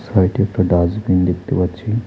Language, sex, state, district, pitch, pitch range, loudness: Bengali, male, West Bengal, Alipurduar, 90 Hz, 90-105 Hz, -17 LUFS